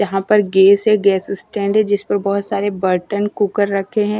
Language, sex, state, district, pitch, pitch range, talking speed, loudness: Hindi, female, Himachal Pradesh, Shimla, 200 Hz, 195-205 Hz, 200 wpm, -16 LUFS